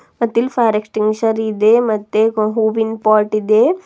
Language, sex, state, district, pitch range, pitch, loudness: Kannada, female, Karnataka, Bidar, 215-225 Hz, 220 Hz, -15 LUFS